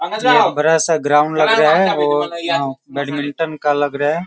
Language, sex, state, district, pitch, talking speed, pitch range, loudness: Hindi, male, Bihar, Sitamarhi, 155 Hz, 195 wpm, 145-170 Hz, -16 LUFS